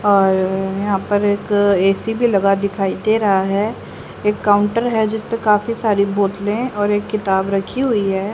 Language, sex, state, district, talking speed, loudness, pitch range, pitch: Hindi, female, Haryana, Jhajjar, 175 wpm, -17 LUFS, 195-215 Hz, 205 Hz